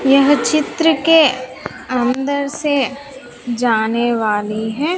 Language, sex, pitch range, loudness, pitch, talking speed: Hindi, female, 240-285 Hz, -16 LUFS, 265 Hz, 95 wpm